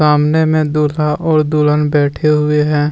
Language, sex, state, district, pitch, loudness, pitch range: Hindi, male, Jharkhand, Deoghar, 150 Hz, -13 LUFS, 150-155 Hz